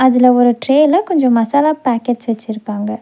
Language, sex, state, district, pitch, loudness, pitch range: Tamil, female, Tamil Nadu, Nilgiris, 245 Hz, -14 LUFS, 230-285 Hz